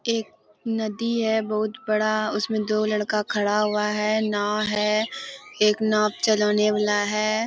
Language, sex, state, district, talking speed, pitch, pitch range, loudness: Hindi, female, Bihar, Bhagalpur, 135 wpm, 215 Hz, 210-220 Hz, -23 LUFS